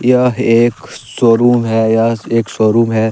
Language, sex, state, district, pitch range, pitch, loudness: Hindi, male, Jharkhand, Deoghar, 115-120 Hz, 115 Hz, -12 LUFS